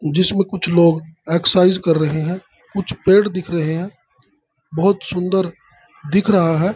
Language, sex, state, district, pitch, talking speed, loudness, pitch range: Hindi, male, Jharkhand, Sahebganj, 180 Hz, 170 wpm, -17 LUFS, 160-190 Hz